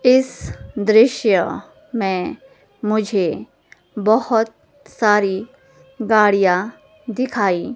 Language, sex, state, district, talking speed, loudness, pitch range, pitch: Hindi, female, Himachal Pradesh, Shimla, 60 wpm, -18 LUFS, 195-250 Hz, 215 Hz